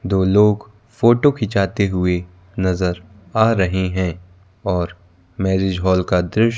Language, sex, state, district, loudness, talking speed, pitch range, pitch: Hindi, male, Madhya Pradesh, Bhopal, -18 LUFS, 125 wpm, 90-105 Hz, 95 Hz